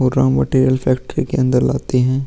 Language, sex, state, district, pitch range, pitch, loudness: Hindi, male, Bihar, Vaishali, 125-130 Hz, 130 Hz, -16 LUFS